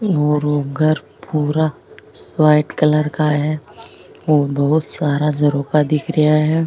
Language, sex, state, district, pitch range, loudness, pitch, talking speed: Rajasthani, female, Rajasthan, Nagaur, 150-155 Hz, -17 LUFS, 150 Hz, 125 wpm